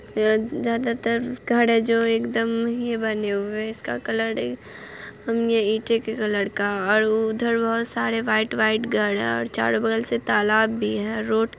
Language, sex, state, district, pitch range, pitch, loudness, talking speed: Hindi, female, Bihar, Saharsa, 215-230 Hz, 220 Hz, -23 LUFS, 180 wpm